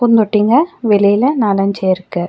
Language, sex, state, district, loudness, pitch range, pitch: Tamil, female, Tamil Nadu, Nilgiris, -13 LUFS, 195-240 Hz, 210 Hz